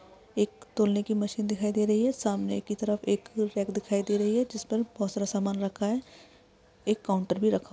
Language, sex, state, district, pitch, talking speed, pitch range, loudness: Hindi, female, Chhattisgarh, Korba, 210 Hz, 215 wpm, 200-215 Hz, -29 LUFS